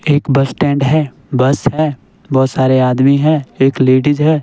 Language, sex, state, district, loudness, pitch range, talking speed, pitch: Hindi, male, Himachal Pradesh, Shimla, -13 LUFS, 130-150 Hz, 175 wpm, 140 Hz